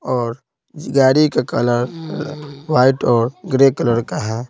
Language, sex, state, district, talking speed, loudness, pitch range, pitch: Hindi, male, Bihar, Patna, 135 wpm, -17 LUFS, 120-145 Hz, 130 Hz